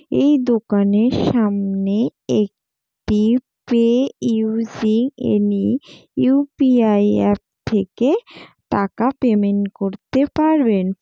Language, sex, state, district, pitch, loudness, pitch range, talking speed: Bengali, female, West Bengal, Jalpaiguri, 220 Hz, -18 LUFS, 200-250 Hz, 100 wpm